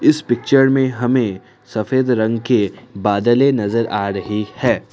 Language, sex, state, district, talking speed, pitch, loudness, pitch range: Hindi, male, Assam, Kamrup Metropolitan, 145 wpm, 120 Hz, -17 LUFS, 105-130 Hz